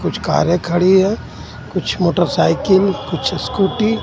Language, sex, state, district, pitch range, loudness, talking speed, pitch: Hindi, male, Jharkhand, Ranchi, 175-195 Hz, -16 LUFS, 120 wpm, 185 Hz